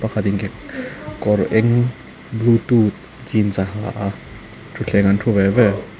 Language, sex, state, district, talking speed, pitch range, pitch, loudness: Mizo, male, Mizoram, Aizawl, 150 wpm, 100-115 Hz, 105 Hz, -18 LUFS